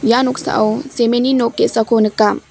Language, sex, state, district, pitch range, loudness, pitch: Garo, female, Meghalaya, West Garo Hills, 225-260 Hz, -15 LUFS, 235 Hz